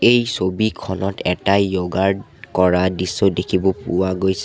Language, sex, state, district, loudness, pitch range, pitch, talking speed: Assamese, male, Assam, Sonitpur, -19 LUFS, 90-100 Hz, 95 Hz, 135 wpm